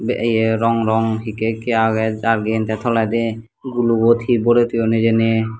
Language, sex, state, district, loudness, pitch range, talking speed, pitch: Chakma, male, Tripura, Dhalai, -17 LUFS, 110-115 Hz, 160 wpm, 115 Hz